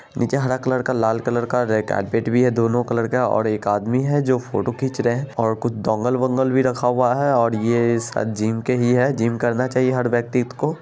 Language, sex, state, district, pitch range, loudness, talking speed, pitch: Hindi, male, Bihar, Saharsa, 115-130 Hz, -20 LUFS, 250 wpm, 120 Hz